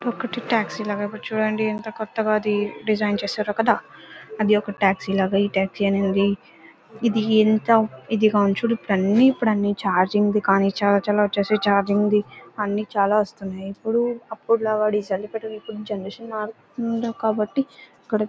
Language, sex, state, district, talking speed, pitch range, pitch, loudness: Telugu, female, Karnataka, Bellary, 120 wpm, 200-220 Hz, 210 Hz, -22 LUFS